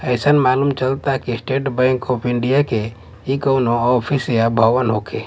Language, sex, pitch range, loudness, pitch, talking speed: Bhojpuri, male, 120-135 Hz, -17 LUFS, 130 Hz, 170 wpm